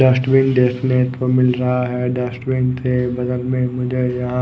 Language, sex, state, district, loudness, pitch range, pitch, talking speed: Hindi, male, Odisha, Khordha, -18 LUFS, 125-130 Hz, 125 Hz, 175 wpm